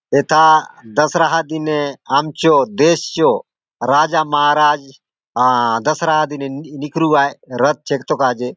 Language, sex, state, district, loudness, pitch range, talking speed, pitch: Halbi, male, Chhattisgarh, Bastar, -15 LUFS, 140-155 Hz, 120 wpm, 150 Hz